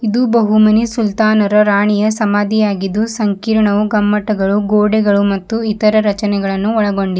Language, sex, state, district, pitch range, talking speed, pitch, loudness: Kannada, female, Karnataka, Bidar, 205-215 Hz, 100 wpm, 210 Hz, -14 LUFS